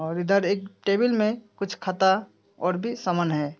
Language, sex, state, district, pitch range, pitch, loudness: Hindi, female, Uttar Pradesh, Hamirpur, 180-210 Hz, 195 Hz, -25 LUFS